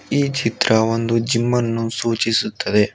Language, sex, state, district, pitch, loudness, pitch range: Kannada, male, Karnataka, Bangalore, 115 Hz, -19 LUFS, 115-120 Hz